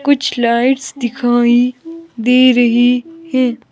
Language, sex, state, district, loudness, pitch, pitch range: Hindi, female, Himachal Pradesh, Shimla, -13 LUFS, 250 Hz, 240-275 Hz